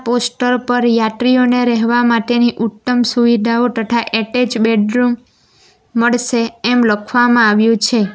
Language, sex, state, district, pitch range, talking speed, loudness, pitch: Gujarati, female, Gujarat, Valsad, 225-245 Hz, 110 wpm, -14 LUFS, 235 Hz